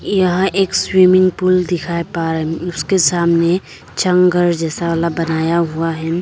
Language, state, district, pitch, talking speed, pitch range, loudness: Hindi, Arunachal Pradesh, Lower Dibang Valley, 170 Hz, 155 wpm, 165-185 Hz, -15 LUFS